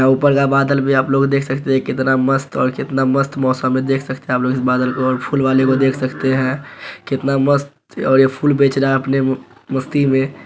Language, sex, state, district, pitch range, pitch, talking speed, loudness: Hindi, male, Bihar, Araria, 130-140 Hz, 135 Hz, 260 wpm, -16 LUFS